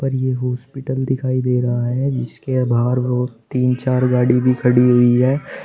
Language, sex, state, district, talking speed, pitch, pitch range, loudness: Hindi, male, Uttar Pradesh, Shamli, 170 wpm, 125 Hz, 125-130 Hz, -18 LUFS